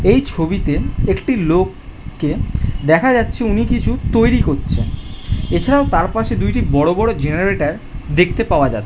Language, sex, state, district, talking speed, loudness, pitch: Bengali, male, West Bengal, Jhargram, 150 wpm, -16 LUFS, 160 Hz